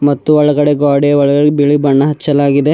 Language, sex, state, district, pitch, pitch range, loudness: Kannada, male, Karnataka, Bidar, 145 Hz, 145-150 Hz, -11 LUFS